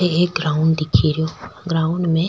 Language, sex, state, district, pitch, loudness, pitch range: Rajasthani, female, Rajasthan, Churu, 160 Hz, -19 LUFS, 155-170 Hz